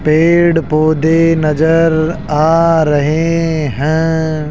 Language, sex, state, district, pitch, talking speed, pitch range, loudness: Hindi, male, Rajasthan, Jaipur, 160 Hz, 80 wpm, 155-165 Hz, -12 LUFS